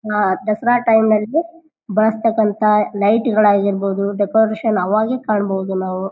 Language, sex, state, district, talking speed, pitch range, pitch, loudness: Kannada, female, Karnataka, Bijapur, 120 wpm, 200-220 Hz, 215 Hz, -16 LUFS